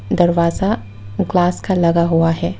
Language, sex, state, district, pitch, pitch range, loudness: Hindi, female, Tripura, West Tripura, 170 Hz, 110-180 Hz, -16 LUFS